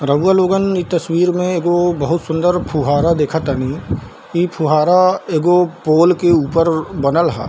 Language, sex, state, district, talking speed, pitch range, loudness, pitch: Hindi, male, Bihar, Darbhanga, 160 wpm, 155-180 Hz, -15 LUFS, 170 Hz